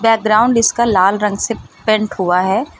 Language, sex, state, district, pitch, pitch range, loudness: Hindi, female, Uttar Pradesh, Lucknow, 215 Hz, 200-230 Hz, -14 LUFS